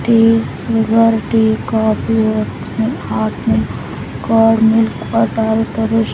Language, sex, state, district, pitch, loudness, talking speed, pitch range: Telugu, female, Andhra Pradesh, Sri Satya Sai, 225 Hz, -15 LUFS, 100 wpm, 220-225 Hz